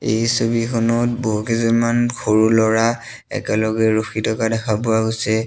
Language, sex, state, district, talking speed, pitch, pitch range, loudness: Assamese, male, Assam, Sonitpur, 120 wpm, 115 Hz, 110-115 Hz, -18 LUFS